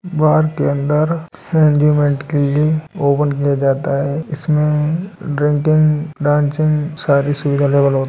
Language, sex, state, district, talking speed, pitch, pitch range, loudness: Hindi, male, Rajasthan, Nagaur, 120 wpm, 150 Hz, 140-155 Hz, -16 LUFS